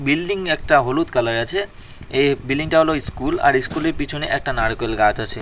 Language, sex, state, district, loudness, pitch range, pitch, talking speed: Bengali, male, West Bengal, Cooch Behar, -19 LUFS, 115-165 Hz, 145 Hz, 175 wpm